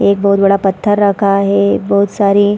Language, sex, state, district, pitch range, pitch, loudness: Hindi, female, Chhattisgarh, Sarguja, 195-200 Hz, 200 Hz, -12 LUFS